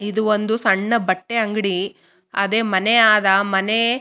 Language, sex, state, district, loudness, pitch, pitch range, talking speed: Kannada, female, Karnataka, Raichur, -18 LUFS, 205 Hz, 195-225 Hz, 135 wpm